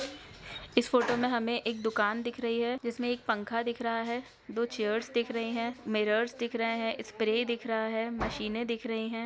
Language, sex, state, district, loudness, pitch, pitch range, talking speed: Hindi, female, Chhattisgarh, Raigarh, -32 LUFS, 235 Hz, 225-240 Hz, 205 wpm